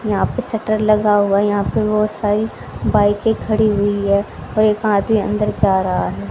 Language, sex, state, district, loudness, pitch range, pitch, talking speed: Hindi, female, Haryana, Rohtak, -17 LUFS, 205-215 Hz, 210 Hz, 200 wpm